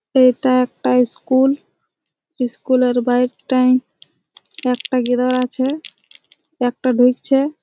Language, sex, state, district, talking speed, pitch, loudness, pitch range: Bengali, female, West Bengal, Jhargram, 95 wpm, 255 Hz, -17 LUFS, 250-265 Hz